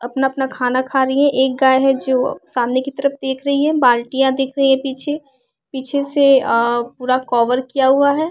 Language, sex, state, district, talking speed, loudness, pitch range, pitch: Hindi, female, Bihar, West Champaran, 210 wpm, -16 LUFS, 255-275 Hz, 265 Hz